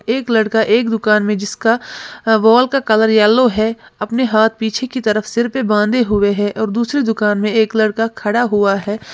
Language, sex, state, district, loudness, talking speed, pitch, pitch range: Hindi, female, Uttar Pradesh, Lalitpur, -15 LUFS, 195 wpm, 220 Hz, 210-235 Hz